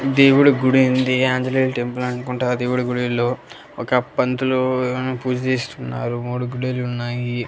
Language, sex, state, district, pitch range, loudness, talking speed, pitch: Telugu, male, Andhra Pradesh, Annamaya, 125-130 Hz, -20 LUFS, 130 wpm, 125 Hz